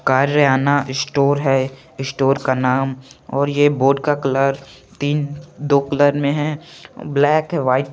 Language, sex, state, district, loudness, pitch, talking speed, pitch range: Hindi, male, Chandigarh, Chandigarh, -18 LUFS, 140 Hz, 150 wpm, 135-145 Hz